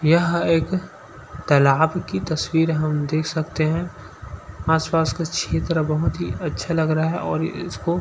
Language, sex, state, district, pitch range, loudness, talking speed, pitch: Hindi, male, Chhattisgarh, Sukma, 150-165 Hz, -21 LUFS, 150 wpm, 160 Hz